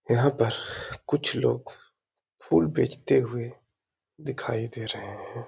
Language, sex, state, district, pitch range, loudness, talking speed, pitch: Hindi, male, Uttar Pradesh, Hamirpur, 100-120 Hz, -27 LUFS, 120 wpm, 115 Hz